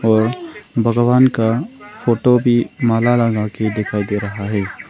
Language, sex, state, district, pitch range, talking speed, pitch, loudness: Hindi, male, Arunachal Pradesh, Longding, 105-125 Hz, 145 wpm, 115 Hz, -17 LUFS